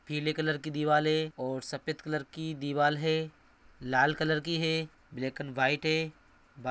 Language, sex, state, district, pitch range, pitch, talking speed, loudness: Hindi, male, Bihar, Araria, 145-155 Hz, 155 Hz, 180 wpm, -31 LUFS